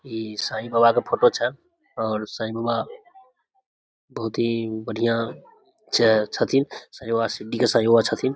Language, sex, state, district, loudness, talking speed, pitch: Maithili, male, Bihar, Samastipur, -23 LUFS, 150 wpm, 115 Hz